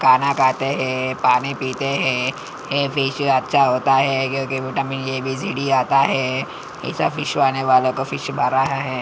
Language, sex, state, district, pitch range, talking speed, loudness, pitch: Hindi, male, Maharashtra, Aurangabad, 130-135 Hz, 180 wpm, -19 LUFS, 135 Hz